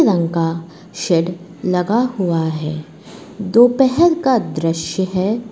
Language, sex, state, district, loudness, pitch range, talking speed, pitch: Hindi, female, Uttar Pradesh, Lucknow, -17 LUFS, 165-220 Hz, 85 wpm, 185 Hz